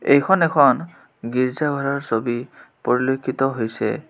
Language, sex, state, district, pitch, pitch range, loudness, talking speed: Assamese, male, Assam, Kamrup Metropolitan, 135 Hz, 125-140 Hz, -20 LUFS, 105 wpm